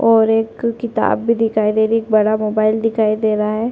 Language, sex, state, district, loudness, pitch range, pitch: Hindi, female, Chhattisgarh, Sarguja, -16 LUFS, 215-225 Hz, 220 Hz